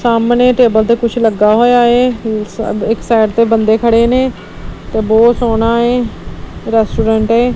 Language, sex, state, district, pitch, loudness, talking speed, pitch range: Punjabi, female, Punjab, Kapurthala, 230 Hz, -12 LUFS, 150 wpm, 220-240 Hz